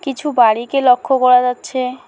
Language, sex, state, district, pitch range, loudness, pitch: Bengali, female, West Bengal, Alipurduar, 250-275 Hz, -14 LUFS, 255 Hz